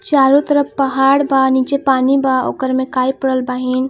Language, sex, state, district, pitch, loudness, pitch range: Bhojpuri, female, Jharkhand, Palamu, 265 Hz, -14 LUFS, 260-275 Hz